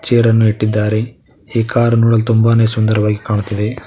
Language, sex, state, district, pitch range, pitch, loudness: Kannada, male, Karnataka, Koppal, 105-115 Hz, 110 Hz, -14 LUFS